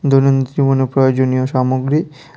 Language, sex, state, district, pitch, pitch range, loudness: Bengali, male, Tripura, West Tripura, 135 Hz, 130-140 Hz, -15 LUFS